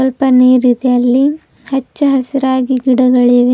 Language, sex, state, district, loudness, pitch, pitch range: Kannada, female, Karnataka, Bidar, -12 LUFS, 255 Hz, 250-270 Hz